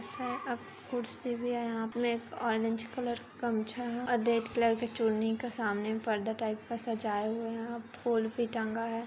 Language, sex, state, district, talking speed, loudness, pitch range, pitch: Hindi, female, Chhattisgarh, Kabirdham, 205 wpm, -34 LUFS, 225-240 Hz, 230 Hz